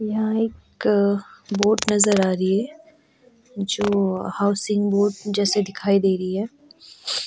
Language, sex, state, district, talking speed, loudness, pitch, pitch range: Hindi, female, Goa, North and South Goa, 125 wpm, -21 LUFS, 205 Hz, 200-220 Hz